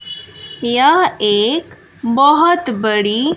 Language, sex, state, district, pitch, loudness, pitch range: Hindi, female, Bihar, West Champaran, 240 Hz, -14 LUFS, 215-300 Hz